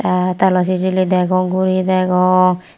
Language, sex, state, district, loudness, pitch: Chakma, female, Tripura, Unakoti, -15 LUFS, 185 Hz